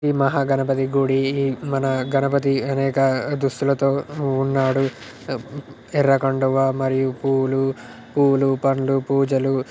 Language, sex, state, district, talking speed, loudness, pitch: Telugu, male, Telangana, Nalgonda, 110 wpm, -20 LUFS, 135 Hz